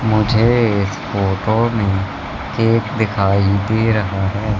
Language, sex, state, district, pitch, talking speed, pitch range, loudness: Hindi, male, Madhya Pradesh, Katni, 105 Hz, 115 wpm, 100-110 Hz, -17 LUFS